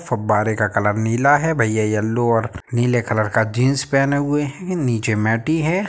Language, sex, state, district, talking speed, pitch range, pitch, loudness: Hindi, male, Bihar, Sitamarhi, 185 wpm, 110-140 Hz, 120 Hz, -19 LUFS